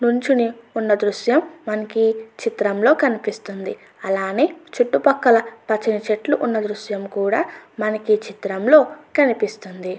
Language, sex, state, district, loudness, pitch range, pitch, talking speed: Telugu, female, Andhra Pradesh, Anantapur, -20 LUFS, 210-260 Hz, 220 Hz, 110 wpm